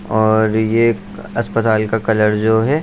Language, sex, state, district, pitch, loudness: Hindi, male, Bihar, Saharsa, 110 Hz, -16 LUFS